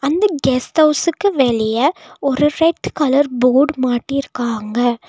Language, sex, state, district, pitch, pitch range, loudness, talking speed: Tamil, female, Tamil Nadu, Nilgiris, 275 Hz, 250-305 Hz, -16 LUFS, 105 wpm